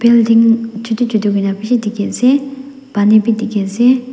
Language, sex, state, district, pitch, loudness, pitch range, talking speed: Nagamese, female, Nagaland, Dimapur, 230 Hz, -13 LUFS, 210-245 Hz, 130 wpm